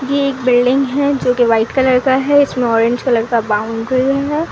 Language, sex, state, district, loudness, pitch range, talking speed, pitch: Hindi, female, Bihar, Kishanganj, -14 LUFS, 235-275 Hz, 200 wpm, 255 Hz